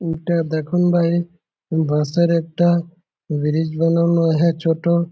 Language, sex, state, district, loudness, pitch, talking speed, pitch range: Bengali, male, West Bengal, Malda, -19 LUFS, 170 Hz, 115 wpm, 160-170 Hz